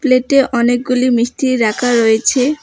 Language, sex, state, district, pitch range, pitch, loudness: Bengali, female, West Bengal, Alipurduar, 235-260 Hz, 250 Hz, -13 LUFS